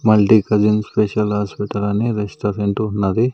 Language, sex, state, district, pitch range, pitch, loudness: Telugu, male, Andhra Pradesh, Sri Satya Sai, 105-110 Hz, 105 Hz, -18 LUFS